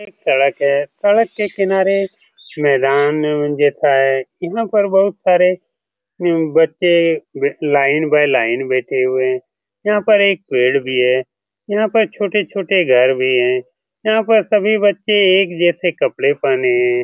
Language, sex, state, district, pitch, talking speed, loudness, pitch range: Hindi, male, Bihar, Saran, 180 Hz, 140 wpm, -15 LUFS, 140-210 Hz